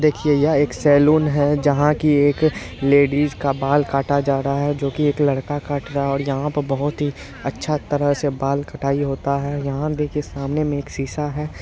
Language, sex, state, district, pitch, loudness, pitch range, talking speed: Hindi, male, Bihar, Supaul, 145 Hz, -20 LUFS, 140-150 Hz, 215 wpm